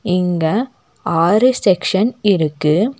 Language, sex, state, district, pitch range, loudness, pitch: Tamil, female, Tamil Nadu, Nilgiris, 165-230 Hz, -16 LUFS, 195 Hz